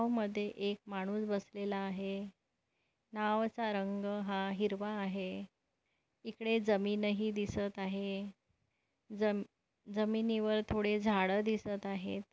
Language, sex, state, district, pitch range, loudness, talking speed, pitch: Marathi, female, Maharashtra, Nagpur, 195-215 Hz, -36 LUFS, 100 wpm, 205 Hz